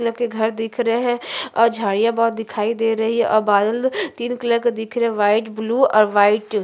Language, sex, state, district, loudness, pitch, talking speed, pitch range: Hindi, female, Uttarakhand, Tehri Garhwal, -19 LUFS, 225 Hz, 210 wpm, 215-235 Hz